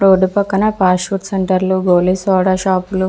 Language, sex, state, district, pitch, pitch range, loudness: Telugu, female, Andhra Pradesh, Visakhapatnam, 190 Hz, 185-195 Hz, -14 LUFS